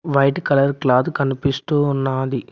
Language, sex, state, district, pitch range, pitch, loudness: Telugu, male, Telangana, Mahabubabad, 135-145 Hz, 140 Hz, -19 LUFS